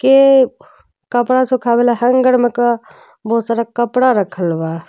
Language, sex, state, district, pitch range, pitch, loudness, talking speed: Bhojpuri, female, Uttar Pradesh, Deoria, 230-255 Hz, 240 Hz, -14 LUFS, 145 wpm